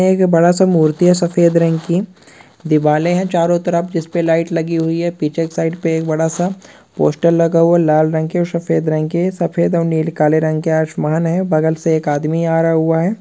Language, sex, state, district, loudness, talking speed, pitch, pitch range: Hindi, male, West Bengal, Malda, -15 LUFS, 225 wpm, 165 Hz, 160-175 Hz